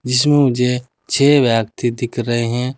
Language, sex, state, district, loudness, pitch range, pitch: Hindi, male, Uttar Pradesh, Saharanpur, -16 LUFS, 120-135 Hz, 125 Hz